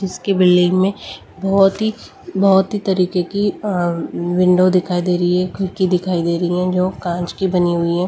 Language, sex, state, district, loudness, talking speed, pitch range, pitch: Hindi, female, Delhi, New Delhi, -17 LUFS, 195 wpm, 175-190 Hz, 180 Hz